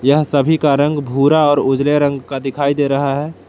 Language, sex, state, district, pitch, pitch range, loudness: Hindi, male, Jharkhand, Palamu, 145 Hz, 140-150 Hz, -15 LUFS